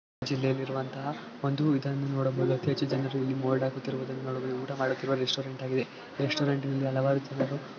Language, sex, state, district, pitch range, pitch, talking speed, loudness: Kannada, male, Karnataka, Chamarajanagar, 130-140 Hz, 135 Hz, 145 wpm, -30 LUFS